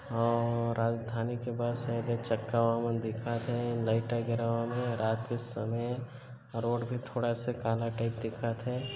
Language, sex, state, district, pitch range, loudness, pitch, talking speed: Chhattisgarhi, male, Chhattisgarh, Bilaspur, 115-120 Hz, -33 LUFS, 115 Hz, 165 wpm